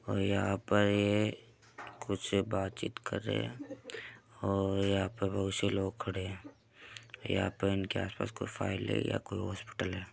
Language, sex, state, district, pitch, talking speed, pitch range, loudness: Hindi, male, Uttar Pradesh, Muzaffarnagar, 100 Hz, 170 wpm, 95-105 Hz, -34 LUFS